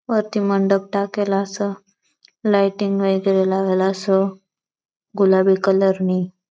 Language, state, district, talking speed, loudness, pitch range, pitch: Bhili, Maharashtra, Dhule, 100 wpm, -19 LUFS, 190-200 Hz, 195 Hz